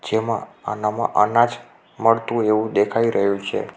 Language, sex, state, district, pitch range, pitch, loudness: Gujarati, male, Gujarat, Navsari, 105-115 Hz, 110 Hz, -20 LUFS